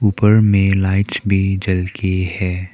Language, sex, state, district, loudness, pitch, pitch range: Hindi, male, Arunachal Pradesh, Papum Pare, -16 LUFS, 95 Hz, 95-100 Hz